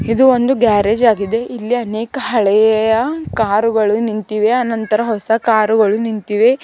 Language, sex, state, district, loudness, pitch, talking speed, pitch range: Kannada, female, Karnataka, Bidar, -15 LUFS, 225 Hz, 115 wpm, 215-240 Hz